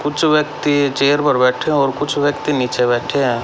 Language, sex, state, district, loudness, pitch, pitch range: Hindi, male, Haryana, Rohtak, -16 LUFS, 145 Hz, 125-150 Hz